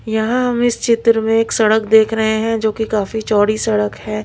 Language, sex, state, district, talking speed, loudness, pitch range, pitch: Hindi, female, Bihar, Patna, 225 wpm, -15 LUFS, 215-225 Hz, 220 Hz